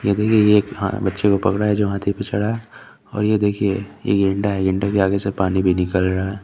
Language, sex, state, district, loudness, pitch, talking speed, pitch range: Hindi, male, Chandigarh, Chandigarh, -19 LUFS, 100 Hz, 270 wpm, 95-105 Hz